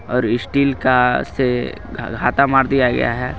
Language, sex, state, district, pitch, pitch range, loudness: Hindi, male, Jharkhand, Garhwa, 125 Hz, 125-135 Hz, -17 LUFS